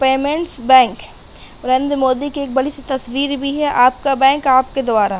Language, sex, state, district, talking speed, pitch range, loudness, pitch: Hindi, female, Uttar Pradesh, Hamirpur, 185 wpm, 255-280 Hz, -16 LUFS, 270 Hz